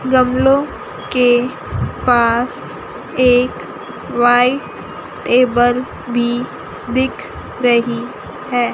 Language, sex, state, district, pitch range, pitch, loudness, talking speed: Hindi, female, Chandigarh, Chandigarh, 240-255 Hz, 245 Hz, -16 LUFS, 70 wpm